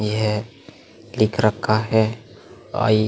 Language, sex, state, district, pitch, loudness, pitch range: Hindi, male, Bihar, Vaishali, 110 Hz, -21 LUFS, 110-115 Hz